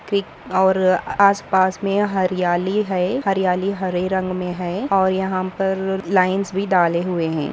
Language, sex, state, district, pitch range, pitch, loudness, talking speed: Hindi, female, Maharashtra, Sindhudurg, 180-195 Hz, 190 Hz, -19 LUFS, 145 wpm